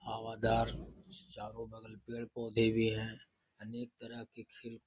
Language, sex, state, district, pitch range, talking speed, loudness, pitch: Hindi, male, Bihar, Gaya, 110-120 Hz, 135 wpm, -37 LUFS, 115 Hz